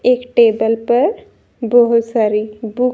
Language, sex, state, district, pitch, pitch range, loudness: Hindi, female, Haryana, Jhajjar, 230 Hz, 220-245 Hz, -14 LUFS